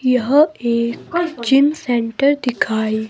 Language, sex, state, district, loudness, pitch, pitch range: Hindi, female, Himachal Pradesh, Shimla, -17 LUFS, 250 Hz, 235-285 Hz